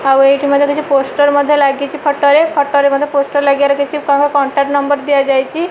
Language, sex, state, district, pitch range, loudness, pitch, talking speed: Odia, female, Odisha, Malkangiri, 280-290 Hz, -12 LUFS, 285 Hz, 190 wpm